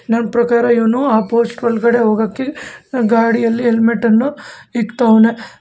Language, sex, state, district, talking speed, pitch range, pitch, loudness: Kannada, male, Karnataka, Bangalore, 120 wpm, 230-240 Hz, 235 Hz, -14 LUFS